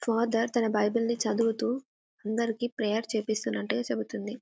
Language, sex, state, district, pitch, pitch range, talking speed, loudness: Telugu, female, Telangana, Karimnagar, 225 Hz, 210-235 Hz, 135 wpm, -29 LUFS